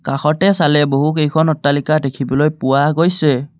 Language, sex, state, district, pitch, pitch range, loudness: Assamese, male, Assam, Kamrup Metropolitan, 150 Hz, 140-155 Hz, -15 LUFS